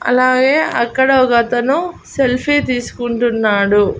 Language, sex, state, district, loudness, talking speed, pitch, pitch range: Telugu, female, Andhra Pradesh, Annamaya, -14 LUFS, 75 wpm, 250 Hz, 235-270 Hz